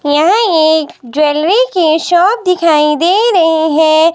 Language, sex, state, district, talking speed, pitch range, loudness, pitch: Hindi, female, Himachal Pradesh, Shimla, 130 wpm, 310-365 Hz, -10 LUFS, 325 Hz